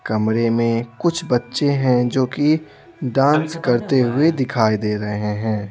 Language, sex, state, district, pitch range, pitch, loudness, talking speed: Hindi, male, Bihar, Patna, 110-140 Hz, 125 Hz, -19 LUFS, 145 wpm